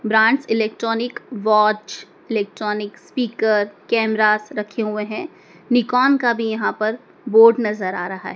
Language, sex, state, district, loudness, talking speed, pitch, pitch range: Hindi, male, Madhya Pradesh, Dhar, -19 LUFS, 135 wpm, 220 Hz, 210-240 Hz